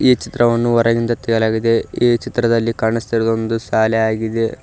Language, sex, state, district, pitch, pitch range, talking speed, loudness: Kannada, male, Karnataka, Koppal, 115 Hz, 115-120 Hz, 130 wpm, -17 LUFS